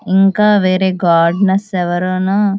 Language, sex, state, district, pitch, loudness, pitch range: Telugu, female, Andhra Pradesh, Visakhapatnam, 190 Hz, -13 LUFS, 180-195 Hz